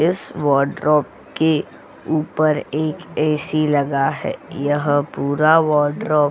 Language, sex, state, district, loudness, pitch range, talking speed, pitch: Hindi, female, Goa, North and South Goa, -19 LUFS, 145-155 Hz, 115 wpm, 150 Hz